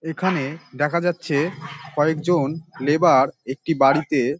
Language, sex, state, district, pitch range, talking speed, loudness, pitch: Bengali, male, West Bengal, Dakshin Dinajpur, 140-165 Hz, 95 wpm, -21 LUFS, 155 Hz